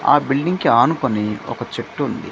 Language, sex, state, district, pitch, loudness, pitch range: Telugu, male, Andhra Pradesh, Manyam, 135 Hz, -19 LUFS, 105-150 Hz